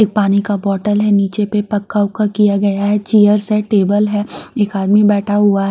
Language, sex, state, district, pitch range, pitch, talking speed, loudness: Hindi, female, Haryana, Rohtak, 200-210 Hz, 205 Hz, 220 wpm, -14 LUFS